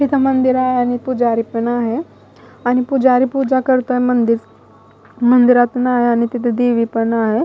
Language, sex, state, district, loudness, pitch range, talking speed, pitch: Marathi, female, Maharashtra, Mumbai Suburban, -15 LUFS, 230-255 Hz, 155 wpm, 245 Hz